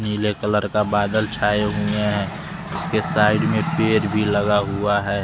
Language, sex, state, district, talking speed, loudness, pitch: Hindi, male, Bihar, West Champaran, 170 wpm, -20 LUFS, 105 Hz